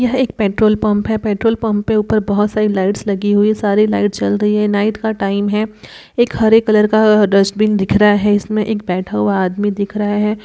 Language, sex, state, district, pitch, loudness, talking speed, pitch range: Hindi, female, Bihar, Araria, 210 Hz, -15 LUFS, 230 wpm, 205-215 Hz